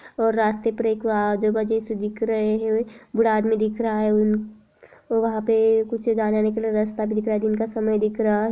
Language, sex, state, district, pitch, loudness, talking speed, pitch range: Hindi, female, Chhattisgarh, Raigarh, 220 Hz, -22 LUFS, 225 wpm, 215-225 Hz